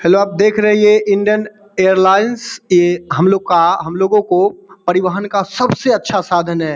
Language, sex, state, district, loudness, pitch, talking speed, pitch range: Hindi, male, Bihar, Samastipur, -13 LUFS, 195 Hz, 170 wpm, 180-210 Hz